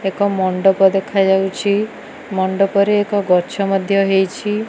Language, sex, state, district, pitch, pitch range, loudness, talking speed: Odia, female, Odisha, Malkangiri, 195 Hz, 190-205 Hz, -16 LUFS, 105 wpm